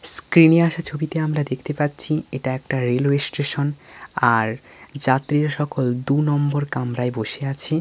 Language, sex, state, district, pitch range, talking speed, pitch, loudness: Bengali, male, West Bengal, Paschim Medinipur, 130-150 Hz, 155 wpm, 140 Hz, -20 LUFS